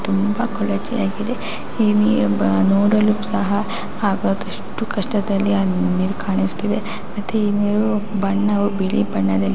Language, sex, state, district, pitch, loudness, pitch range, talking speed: Kannada, female, Karnataka, Raichur, 205 Hz, -19 LUFS, 195-210 Hz, 125 wpm